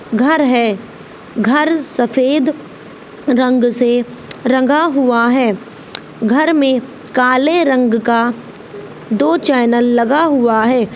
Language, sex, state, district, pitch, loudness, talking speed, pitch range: Hindi, female, Uttar Pradesh, Gorakhpur, 250 Hz, -13 LUFS, 105 wpm, 235-285 Hz